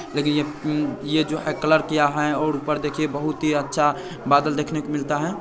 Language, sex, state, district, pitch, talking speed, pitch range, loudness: Hindi, male, Bihar, Saharsa, 150 Hz, 210 wpm, 145-155 Hz, -22 LUFS